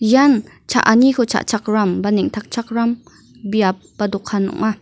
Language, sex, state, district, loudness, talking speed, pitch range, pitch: Garo, female, Meghalaya, North Garo Hills, -17 LUFS, 110 wpm, 205-235 Hz, 220 Hz